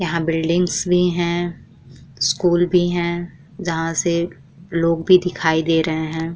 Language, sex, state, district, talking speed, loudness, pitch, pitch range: Hindi, female, Bihar, Vaishali, 140 wpm, -19 LUFS, 170 Hz, 160-175 Hz